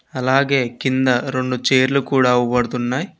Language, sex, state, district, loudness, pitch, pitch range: Telugu, male, Telangana, Mahabubabad, -18 LUFS, 130 Hz, 125-135 Hz